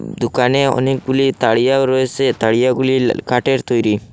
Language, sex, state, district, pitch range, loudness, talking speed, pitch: Bengali, male, Assam, Hailakandi, 120-135 Hz, -15 LUFS, 100 wpm, 130 Hz